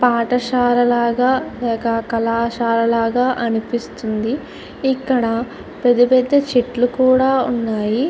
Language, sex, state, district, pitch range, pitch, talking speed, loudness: Telugu, female, Andhra Pradesh, Chittoor, 230-255 Hz, 245 Hz, 95 wpm, -17 LUFS